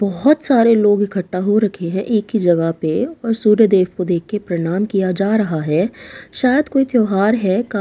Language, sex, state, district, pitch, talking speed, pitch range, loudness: Hindi, female, Bihar, Katihar, 205 Hz, 205 wpm, 185-230 Hz, -16 LUFS